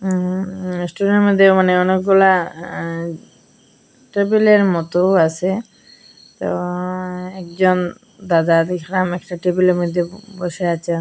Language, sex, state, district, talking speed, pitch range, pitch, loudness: Bengali, female, Assam, Hailakandi, 100 wpm, 175-195 Hz, 185 Hz, -17 LUFS